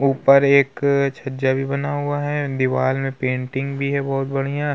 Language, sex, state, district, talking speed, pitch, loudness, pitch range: Hindi, male, Uttar Pradesh, Hamirpur, 175 wpm, 140 Hz, -20 LUFS, 135-140 Hz